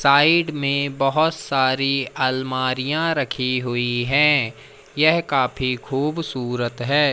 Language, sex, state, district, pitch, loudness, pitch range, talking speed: Hindi, male, Madhya Pradesh, Umaria, 135 Hz, -20 LUFS, 130-150 Hz, 100 wpm